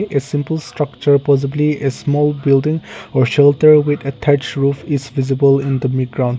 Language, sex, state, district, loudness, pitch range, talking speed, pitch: English, male, Nagaland, Kohima, -15 LUFS, 135-150 Hz, 160 wpm, 140 Hz